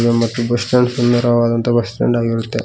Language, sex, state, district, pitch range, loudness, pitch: Kannada, male, Karnataka, Koppal, 115-120 Hz, -16 LUFS, 120 Hz